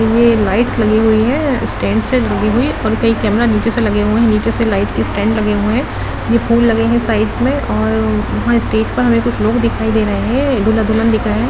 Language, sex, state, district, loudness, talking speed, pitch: Hindi, female, Bihar, Gopalganj, -14 LUFS, 245 wpm, 220 Hz